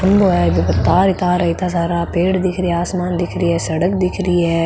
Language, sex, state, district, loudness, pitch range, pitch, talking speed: Marwari, female, Rajasthan, Nagaur, -16 LUFS, 165-185 Hz, 175 Hz, 255 wpm